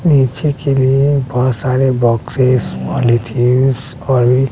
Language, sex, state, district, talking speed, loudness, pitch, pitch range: Hindi, male, Bihar, West Champaran, 105 wpm, -14 LUFS, 130 Hz, 125-135 Hz